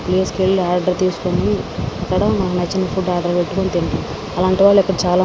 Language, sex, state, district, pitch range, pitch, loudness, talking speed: Telugu, female, Andhra Pradesh, Srikakulam, 180-190 Hz, 185 Hz, -17 LUFS, 185 wpm